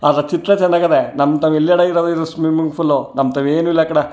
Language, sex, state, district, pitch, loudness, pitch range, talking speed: Kannada, male, Karnataka, Chamarajanagar, 160 Hz, -15 LUFS, 150-170 Hz, 215 wpm